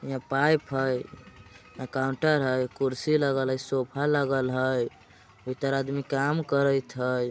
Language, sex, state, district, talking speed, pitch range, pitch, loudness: Bajjika, male, Bihar, Vaishali, 145 wpm, 130-140 Hz, 135 Hz, -27 LUFS